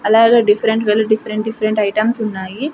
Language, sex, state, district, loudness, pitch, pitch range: Telugu, female, Andhra Pradesh, Sri Satya Sai, -15 LUFS, 215 Hz, 215-225 Hz